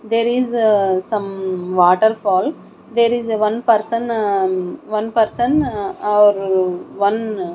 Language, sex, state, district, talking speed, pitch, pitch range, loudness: English, female, Odisha, Nuapada, 135 wpm, 215 Hz, 190-230 Hz, -17 LUFS